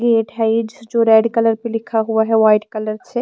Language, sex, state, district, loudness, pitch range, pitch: Hindi, female, Bihar, Kaimur, -16 LUFS, 220-230 Hz, 225 Hz